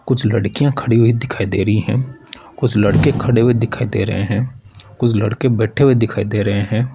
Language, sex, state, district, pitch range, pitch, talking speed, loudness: Hindi, male, Rajasthan, Jaipur, 105-125 Hz, 115 Hz, 205 wpm, -16 LUFS